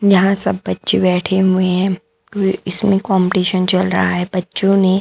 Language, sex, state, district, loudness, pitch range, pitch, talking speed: Hindi, female, Bihar, West Champaran, -16 LUFS, 185-195 Hz, 185 Hz, 170 wpm